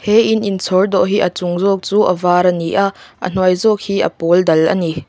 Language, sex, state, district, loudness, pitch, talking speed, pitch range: Mizo, female, Mizoram, Aizawl, -15 LUFS, 185 Hz, 285 wpm, 175-200 Hz